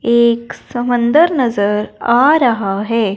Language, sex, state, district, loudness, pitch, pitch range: Hindi, female, Punjab, Fazilka, -14 LUFS, 235 Hz, 215-245 Hz